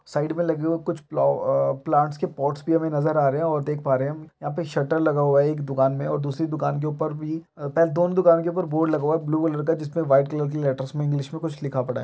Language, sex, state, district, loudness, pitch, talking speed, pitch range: Maithili, male, Bihar, Araria, -23 LUFS, 150 Hz, 295 wpm, 145-165 Hz